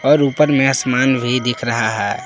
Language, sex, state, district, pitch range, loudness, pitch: Hindi, male, Jharkhand, Palamu, 125-135 Hz, -16 LUFS, 130 Hz